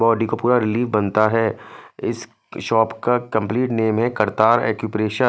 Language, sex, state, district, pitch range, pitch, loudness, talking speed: Hindi, male, Punjab, Fazilka, 110-120 Hz, 110 Hz, -19 LUFS, 170 wpm